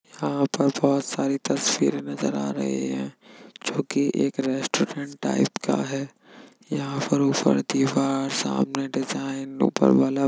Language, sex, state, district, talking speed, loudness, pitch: Hindi, male, Uttar Pradesh, Budaun, 140 wpm, -24 LUFS, 135 Hz